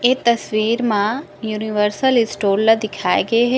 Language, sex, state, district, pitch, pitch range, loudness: Chhattisgarhi, female, Chhattisgarh, Raigarh, 220 Hz, 210-235 Hz, -18 LUFS